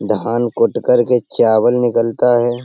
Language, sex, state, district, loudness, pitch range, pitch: Hindi, male, Uttar Pradesh, Etah, -14 LUFS, 115-120 Hz, 120 Hz